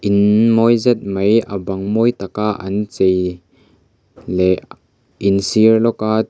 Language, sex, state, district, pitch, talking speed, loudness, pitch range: Mizo, male, Mizoram, Aizawl, 100 Hz, 145 wpm, -16 LUFS, 95-110 Hz